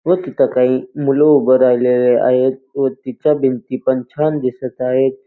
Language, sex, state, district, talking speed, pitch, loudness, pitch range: Marathi, male, Maharashtra, Dhule, 160 wpm, 130 Hz, -15 LUFS, 125-140 Hz